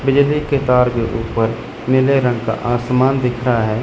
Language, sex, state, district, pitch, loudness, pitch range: Hindi, male, Chandigarh, Chandigarh, 125 Hz, -16 LUFS, 115-130 Hz